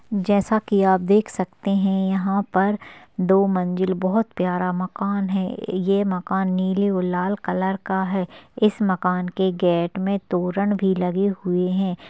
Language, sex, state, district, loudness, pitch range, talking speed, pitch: Hindi, female, Maharashtra, Chandrapur, -22 LUFS, 185-200 Hz, 160 wpm, 190 Hz